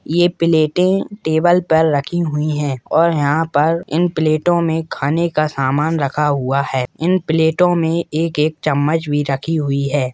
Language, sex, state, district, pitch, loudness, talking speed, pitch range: Hindi, male, Rajasthan, Nagaur, 160 Hz, -17 LUFS, 170 wpm, 145-170 Hz